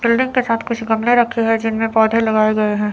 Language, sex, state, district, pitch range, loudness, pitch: Hindi, female, Chandigarh, Chandigarh, 220-235 Hz, -16 LUFS, 225 Hz